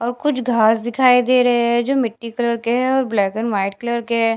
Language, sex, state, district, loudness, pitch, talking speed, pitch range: Hindi, female, Bihar, Katihar, -18 LUFS, 235 Hz, 260 wpm, 230-250 Hz